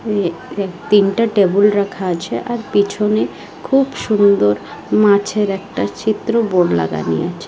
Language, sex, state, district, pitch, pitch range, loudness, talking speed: Bengali, female, Odisha, Malkangiri, 200 Hz, 180-215 Hz, -16 LUFS, 110 wpm